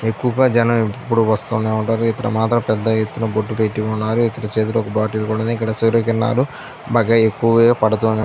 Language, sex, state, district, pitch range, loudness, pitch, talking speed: Telugu, male, Andhra Pradesh, Anantapur, 110-115 Hz, -17 LUFS, 110 Hz, 175 wpm